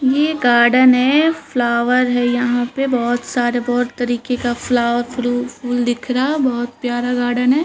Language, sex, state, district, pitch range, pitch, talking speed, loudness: Hindi, female, Uttarakhand, Tehri Garhwal, 240-255 Hz, 245 Hz, 155 wpm, -17 LUFS